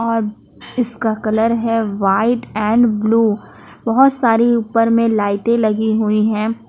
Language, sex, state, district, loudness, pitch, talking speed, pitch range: Hindi, female, Jharkhand, Palamu, -16 LUFS, 225 Hz, 135 wpm, 215-230 Hz